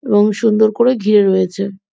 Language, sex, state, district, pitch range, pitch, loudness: Bengali, female, West Bengal, Jhargram, 200-220 Hz, 210 Hz, -14 LUFS